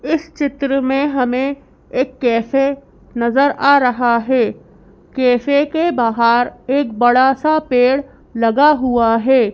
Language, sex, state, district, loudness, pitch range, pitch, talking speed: Hindi, male, Madhya Pradesh, Bhopal, -15 LUFS, 245-280 Hz, 260 Hz, 125 wpm